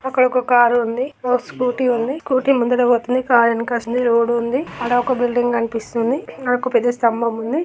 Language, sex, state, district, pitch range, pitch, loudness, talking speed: Telugu, female, Andhra Pradesh, Krishna, 235-255 Hz, 245 Hz, -18 LUFS, 150 wpm